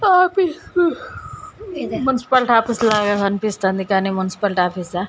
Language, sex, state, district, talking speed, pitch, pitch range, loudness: Telugu, female, Telangana, Karimnagar, 105 wpm, 225 Hz, 195-325 Hz, -18 LUFS